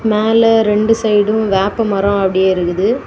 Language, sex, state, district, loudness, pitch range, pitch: Tamil, female, Tamil Nadu, Kanyakumari, -13 LUFS, 195-220 Hz, 210 Hz